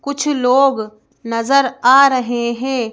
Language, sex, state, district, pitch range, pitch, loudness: Hindi, female, Madhya Pradesh, Bhopal, 235-275 Hz, 255 Hz, -14 LUFS